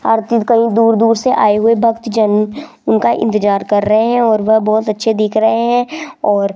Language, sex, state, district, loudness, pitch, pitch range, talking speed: Hindi, female, Rajasthan, Jaipur, -13 LUFS, 225 Hz, 215-230 Hz, 200 wpm